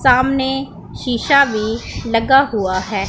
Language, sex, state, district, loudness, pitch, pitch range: Hindi, female, Punjab, Pathankot, -16 LUFS, 245 Hz, 220-270 Hz